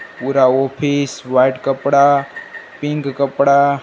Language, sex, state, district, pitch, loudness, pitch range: Hindi, male, Gujarat, Gandhinagar, 140 Hz, -15 LUFS, 135-140 Hz